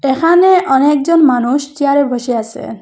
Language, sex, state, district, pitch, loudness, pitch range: Bengali, female, Assam, Hailakandi, 280 Hz, -12 LUFS, 250-305 Hz